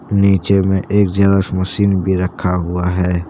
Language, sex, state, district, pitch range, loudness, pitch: Hindi, male, Jharkhand, Deoghar, 90-100 Hz, -15 LUFS, 95 Hz